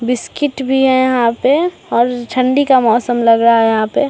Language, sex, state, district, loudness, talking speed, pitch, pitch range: Hindi, male, Bihar, Samastipur, -13 LUFS, 205 wpm, 250 Hz, 235-265 Hz